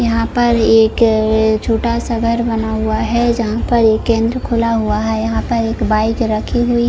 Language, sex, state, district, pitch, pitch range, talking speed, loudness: Hindi, female, Jharkhand, Jamtara, 225 Hz, 220-235 Hz, 175 wpm, -15 LUFS